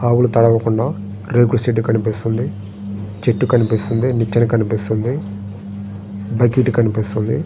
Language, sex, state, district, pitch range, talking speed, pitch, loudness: Telugu, male, Andhra Pradesh, Srikakulam, 100-120 Hz, 70 wpm, 115 Hz, -17 LUFS